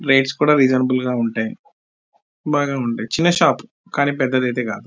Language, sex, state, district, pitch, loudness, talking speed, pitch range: Telugu, male, Andhra Pradesh, Anantapur, 130 Hz, -18 LUFS, 170 wpm, 125-145 Hz